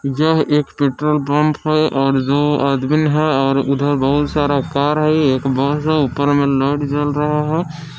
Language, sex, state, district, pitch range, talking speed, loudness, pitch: Hindi, male, Jharkhand, Palamu, 140-150 Hz, 180 wpm, -16 LUFS, 145 Hz